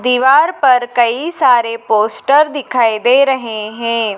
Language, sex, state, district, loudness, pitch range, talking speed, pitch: Hindi, female, Madhya Pradesh, Dhar, -13 LUFS, 230-270 Hz, 130 wpm, 245 Hz